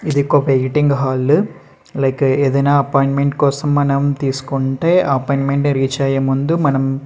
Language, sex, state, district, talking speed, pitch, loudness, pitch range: Telugu, male, Andhra Pradesh, Srikakulam, 145 wpm, 140 Hz, -16 LUFS, 135-145 Hz